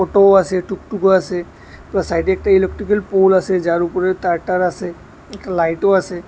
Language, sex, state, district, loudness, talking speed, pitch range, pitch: Bengali, male, Tripura, West Tripura, -16 LUFS, 170 wpm, 180-195 Hz, 185 Hz